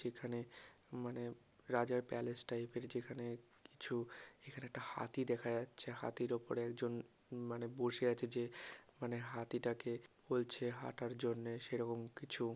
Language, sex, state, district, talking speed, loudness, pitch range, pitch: Bengali, male, West Bengal, North 24 Parganas, 135 wpm, -44 LUFS, 120-125 Hz, 120 Hz